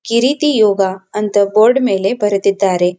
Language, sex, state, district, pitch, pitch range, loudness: Kannada, female, Karnataka, Belgaum, 205 Hz, 195-225 Hz, -14 LUFS